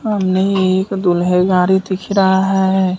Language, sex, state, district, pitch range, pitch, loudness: Hindi, male, Bihar, West Champaran, 185-195 Hz, 190 Hz, -15 LUFS